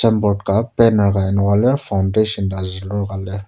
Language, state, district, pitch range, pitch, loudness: Ao, Nagaland, Kohima, 95-110 Hz, 100 Hz, -17 LUFS